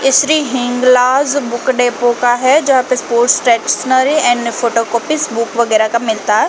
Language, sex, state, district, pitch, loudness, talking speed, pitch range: Hindi, female, Chhattisgarh, Balrampur, 245 Hz, -13 LUFS, 175 wpm, 235-265 Hz